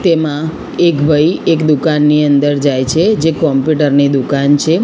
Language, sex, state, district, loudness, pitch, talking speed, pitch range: Gujarati, female, Gujarat, Gandhinagar, -12 LUFS, 150 Hz, 160 wpm, 145-160 Hz